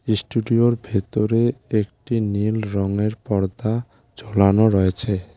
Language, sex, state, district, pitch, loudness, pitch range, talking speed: Bengali, male, West Bengal, Alipurduar, 110 Hz, -21 LUFS, 100-115 Hz, 90 wpm